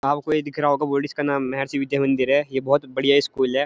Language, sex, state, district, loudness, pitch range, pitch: Hindi, male, Uttarakhand, Uttarkashi, -22 LUFS, 135-145 Hz, 140 Hz